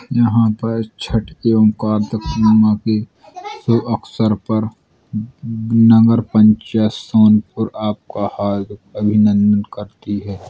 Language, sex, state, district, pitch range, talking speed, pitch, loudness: Bundeli, male, Uttar Pradesh, Jalaun, 105-115 Hz, 95 wpm, 110 Hz, -16 LUFS